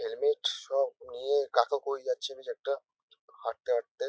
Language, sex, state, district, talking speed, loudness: Bengali, male, West Bengal, North 24 Parganas, 145 wpm, -32 LUFS